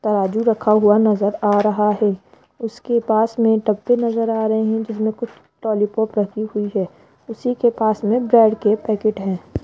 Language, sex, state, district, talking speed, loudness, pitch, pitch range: Hindi, female, Rajasthan, Jaipur, 175 wpm, -18 LUFS, 220 Hz, 210-225 Hz